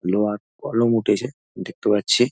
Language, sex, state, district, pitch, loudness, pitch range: Bengali, male, West Bengal, Dakshin Dinajpur, 105 Hz, -21 LUFS, 105-115 Hz